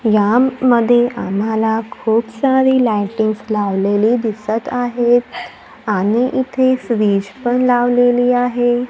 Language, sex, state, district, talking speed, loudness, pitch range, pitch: Marathi, female, Maharashtra, Gondia, 95 wpm, -15 LUFS, 220-245 Hz, 240 Hz